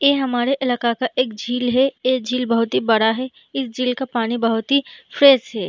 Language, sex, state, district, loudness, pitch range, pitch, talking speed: Hindi, female, Chhattisgarh, Balrampur, -19 LUFS, 230-265 Hz, 250 Hz, 220 wpm